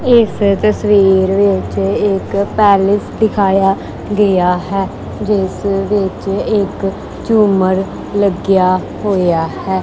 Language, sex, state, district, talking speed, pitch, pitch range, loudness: Punjabi, female, Punjab, Kapurthala, 90 wpm, 195 Hz, 190-205 Hz, -14 LUFS